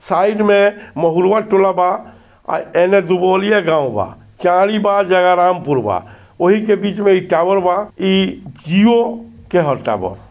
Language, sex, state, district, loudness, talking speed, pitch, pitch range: Bhojpuri, male, Bihar, Gopalganj, -15 LUFS, 155 wpm, 185 Hz, 155-200 Hz